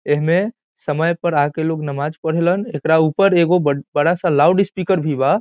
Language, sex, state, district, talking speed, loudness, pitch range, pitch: Bhojpuri, male, Bihar, Saran, 190 wpm, -17 LUFS, 150-180 Hz, 160 Hz